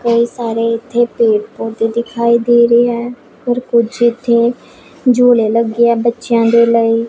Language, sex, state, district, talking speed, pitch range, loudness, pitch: Punjabi, female, Punjab, Pathankot, 150 wpm, 230-240 Hz, -13 LUFS, 235 Hz